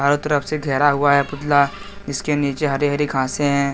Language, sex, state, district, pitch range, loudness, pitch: Hindi, male, Jharkhand, Deoghar, 140-145 Hz, -19 LUFS, 145 Hz